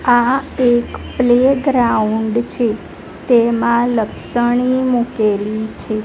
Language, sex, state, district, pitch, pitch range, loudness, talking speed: Gujarati, female, Gujarat, Gandhinagar, 240 Hz, 220-245 Hz, -16 LUFS, 80 wpm